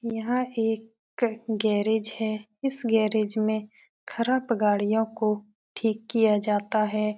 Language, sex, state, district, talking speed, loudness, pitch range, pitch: Hindi, female, Uttar Pradesh, Etah, 125 wpm, -26 LUFS, 215-230 Hz, 220 Hz